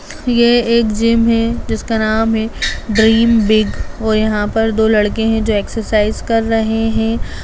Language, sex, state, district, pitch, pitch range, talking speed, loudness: Hindi, female, Bihar, Jamui, 225 Hz, 215-230 Hz, 160 wpm, -14 LUFS